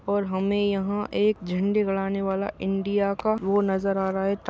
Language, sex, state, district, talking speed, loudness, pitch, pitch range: Hindi, male, Chhattisgarh, Bastar, 185 wpm, -25 LUFS, 195 Hz, 195-205 Hz